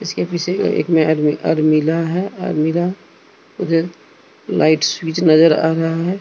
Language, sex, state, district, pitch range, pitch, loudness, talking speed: Hindi, male, Jharkhand, Deoghar, 155-175 Hz, 165 Hz, -16 LUFS, 145 wpm